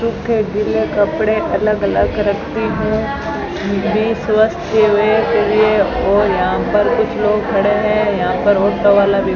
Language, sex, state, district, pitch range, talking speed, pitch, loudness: Hindi, female, Rajasthan, Bikaner, 200-215 Hz, 140 wpm, 210 Hz, -15 LUFS